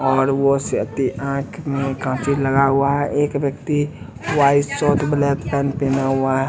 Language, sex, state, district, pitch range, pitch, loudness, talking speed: Hindi, male, Bihar, West Champaran, 135-145 Hz, 140 Hz, -19 LUFS, 155 wpm